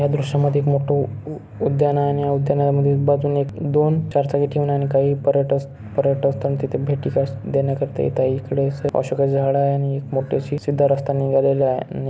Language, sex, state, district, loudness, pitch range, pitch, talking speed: Marathi, male, Maharashtra, Chandrapur, -20 LUFS, 135-145 Hz, 140 Hz, 195 wpm